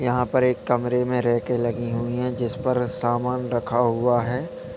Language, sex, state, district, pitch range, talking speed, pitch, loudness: Hindi, male, Bihar, Jamui, 120-125 Hz, 190 wpm, 125 Hz, -23 LUFS